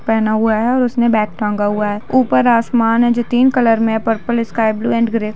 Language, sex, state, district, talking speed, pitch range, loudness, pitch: Hindi, female, Chhattisgarh, Bilaspur, 260 wpm, 220-240 Hz, -15 LUFS, 225 Hz